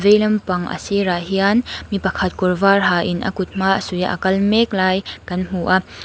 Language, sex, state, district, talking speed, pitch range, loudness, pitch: Mizo, female, Mizoram, Aizawl, 235 wpm, 180-200 Hz, -18 LUFS, 190 Hz